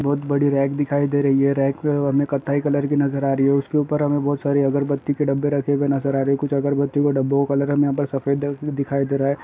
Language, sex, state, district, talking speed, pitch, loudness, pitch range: Hindi, male, Uttar Pradesh, Deoria, 285 wpm, 140 Hz, -20 LUFS, 140-145 Hz